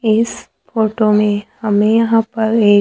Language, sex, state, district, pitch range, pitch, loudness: Hindi, male, Maharashtra, Gondia, 210-225 Hz, 220 Hz, -15 LUFS